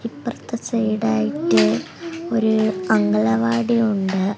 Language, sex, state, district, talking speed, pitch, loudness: Malayalam, female, Kerala, Kasaragod, 80 wpm, 190 Hz, -20 LUFS